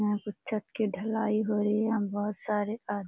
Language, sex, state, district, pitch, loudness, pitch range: Hindi, female, Bihar, Jamui, 210 Hz, -30 LUFS, 205-215 Hz